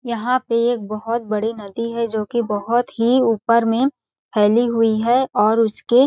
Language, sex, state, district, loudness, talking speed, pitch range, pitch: Hindi, female, Chhattisgarh, Balrampur, -19 LUFS, 190 wpm, 220-240 Hz, 230 Hz